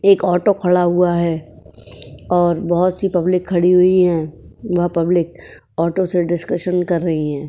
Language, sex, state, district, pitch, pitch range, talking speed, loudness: Hindi, female, Uttar Pradesh, Jyotiba Phule Nagar, 175 Hz, 170-180 Hz, 160 wpm, -17 LUFS